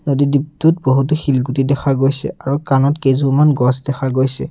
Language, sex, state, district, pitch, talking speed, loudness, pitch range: Assamese, male, Assam, Sonitpur, 140 Hz, 160 wpm, -15 LUFS, 135-145 Hz